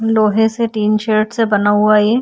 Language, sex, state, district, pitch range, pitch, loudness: Hindi, female, Uttar Pradesh, Jyotiba Phule Nagar, 210-225 Hz, 215 Hz, -14 LUFS